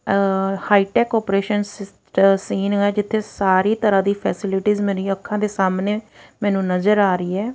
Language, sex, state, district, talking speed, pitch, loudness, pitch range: Punjabi, female, Punjab, Fazilka, 150 wpm, 200 Hz, -19 LUFS, 195-210 Hz